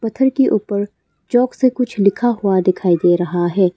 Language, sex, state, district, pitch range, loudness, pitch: Hindi, female, Arunachal Pradesh, Longding, 185-245 Hz, -16 LUFS, 200 Hz